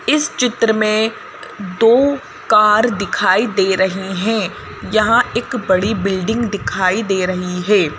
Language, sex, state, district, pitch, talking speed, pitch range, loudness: Hindi, female, Madhya Pradesh, Bhopal, 210 Hz, 130 wpm, 190-230 Hz, -16 LUFS